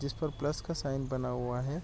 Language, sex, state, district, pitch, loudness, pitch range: Hindi, male, Bihar, East Champaran, 140 Hz, -35 LUFS, 125-150 Hz